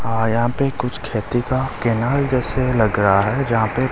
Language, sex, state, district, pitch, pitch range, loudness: Hindi, male, Delhi, New Delhi, 120 Hz, 110-130 Hz, -19 LUFS